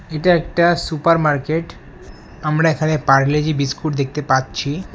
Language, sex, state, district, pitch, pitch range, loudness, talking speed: Bengali, male, West Bengal, Alipurduar, 155 Hz, 140-165 Hz, -17 LUFS, 135 wpm